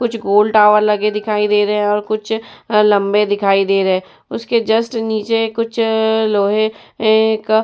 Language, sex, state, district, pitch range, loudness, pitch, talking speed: Hindi, female, Uttar Pradesh, Jyotiba Phule Nagar, 210-220 Hz, -15 LUFS, 215 Hz, 180 wpm